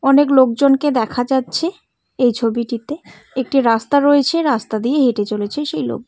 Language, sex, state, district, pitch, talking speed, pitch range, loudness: Bengali, female, West Bengal, Cooch Behar, 265 Hz, 150 wpm, 235-285 Hz, -16 LUFS